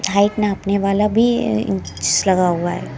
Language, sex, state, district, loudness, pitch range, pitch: Hindi, female, Himachal Pradesh, Shimla, -17 LUFS, 175-205 Hz, 195 Hz